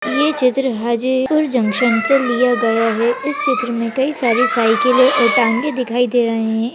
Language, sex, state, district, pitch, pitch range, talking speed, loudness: Hindi, female, Maharashtra, Chandrapur, 245 Hz, 230-260 Hz, 195 wpm, -16 LUFS